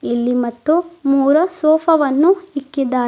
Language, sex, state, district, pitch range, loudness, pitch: Kannada, female, Karnataka, Bidar, 260-325 Hz, -16 LUFS, 290 Hz